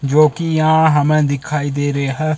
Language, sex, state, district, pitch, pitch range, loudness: Hindi, male, Himachal Pradesh, Shimla, 150 Hz, 145-155 Hz, -15 LUFS